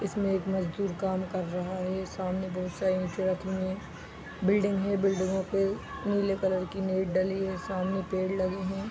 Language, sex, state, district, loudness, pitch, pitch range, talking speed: Hindi, female, Bihar, East Champaran, -30 LUFS, 190 Hz, 185-195 Hz, 190 wpm